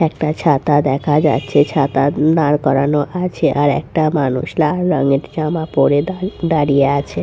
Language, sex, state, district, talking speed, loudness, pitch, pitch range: Bengali, female, West Bengal, Purulia, 155 wpm, -16 LUFS, 150 Hz, 140-160 Hz